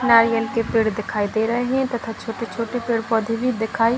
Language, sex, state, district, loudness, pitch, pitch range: Hindi, female, Bihar, Kishanganj, -21 LUFS, 230 Hz, 225-235 Hz